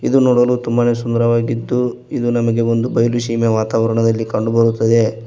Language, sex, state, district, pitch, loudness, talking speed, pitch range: Kannada, male, Karnataka, Koppal, 115 Hz, -16 LUFS, 125 wpm, 115-120 Hz